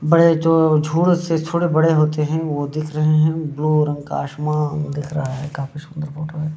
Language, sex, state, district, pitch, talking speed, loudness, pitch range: Hindi, male, Bihar, Muzaffarpur, 155 Hz, 210 wpm, -19 LUFS, 150-160 Hz